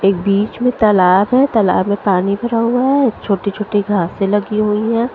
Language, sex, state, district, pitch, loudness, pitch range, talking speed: Hindi, female, Haryana, Charkhi Dadri, 205 Hz, -15 LUFS, 200-230 Hz, 200 wpm